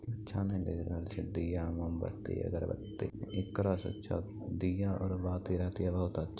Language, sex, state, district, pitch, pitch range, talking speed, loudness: Maithili, male, Bihar, Begusarai, 95 Hz, 90-105 Hz, 190 wpm, -37 LUFS